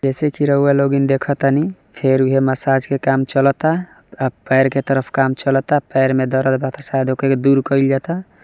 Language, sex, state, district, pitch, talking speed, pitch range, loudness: Maithili, male, Bihar, Samastipur, 135 Hz, 200 wpm, 135-140 Hz, -17 LUFS